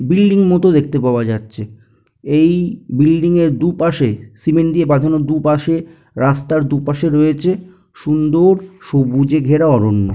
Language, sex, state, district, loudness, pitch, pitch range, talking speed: Bengali, male, West Bengal, North 24 Parganas, -14 LUFS, 155 Hz, 135-170 Hz, 125 wpm